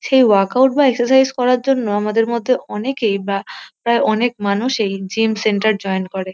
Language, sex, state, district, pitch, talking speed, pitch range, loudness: Bengali, female, West Bengal, North 24 Parganas, 225 Hz, 160 wpm, 200-250 Hz, -17 LUFS